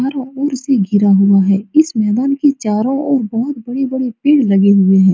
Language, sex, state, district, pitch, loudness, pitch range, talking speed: Hindi, female, Bihar, Supaul, 245 Hz, -14 LUFS, 205-275 Hz, 200 wpm